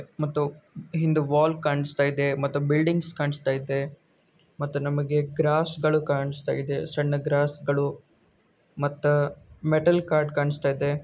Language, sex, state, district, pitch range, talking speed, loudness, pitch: Kannada, male, Karnataka, Gulbarga, 145-155 Hz, 115 wpm, -25 LUFS, 145 Hz